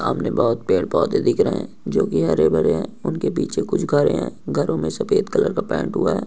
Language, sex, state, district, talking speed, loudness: Hindi, male, Jharkhand, Jamtara, 240 wpm, -20 LUFS